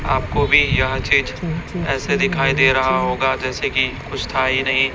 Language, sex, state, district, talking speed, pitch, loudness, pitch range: Hindi, male, Chhattisgarh, Raipur, 180 wpm, 135 Hz, -18 LUFS, 130-145 Hz